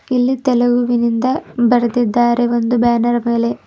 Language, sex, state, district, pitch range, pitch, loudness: Kannada, female, Karnataka, Bidar, 235-245 Hz, 240 Hz, -15 LUFS